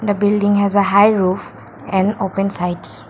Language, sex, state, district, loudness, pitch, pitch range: English, female, Assam, Kamrup Metropolitan, -16 LUFS, 200 Hz, 190-205 Hz